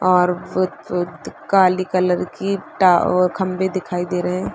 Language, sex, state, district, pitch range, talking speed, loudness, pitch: Hindi, female, Chhattisgarh, Bastar, 180-185 Hz, 120 wpm, -19 LUFS, 180 Hz